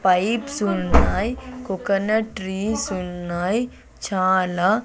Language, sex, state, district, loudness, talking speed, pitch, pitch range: Telugu, female, Andhra Pradesh, Sri Satya Sai, -22 LUFS, 75 wpm, 195 Hz, 185-220 Hz